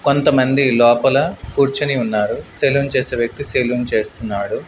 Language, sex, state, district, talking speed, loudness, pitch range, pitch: Telugu, male, Andhra Pradesh, Manyam, 115 wpm, -17 LUFS, 120-140 Hz, 130 Hz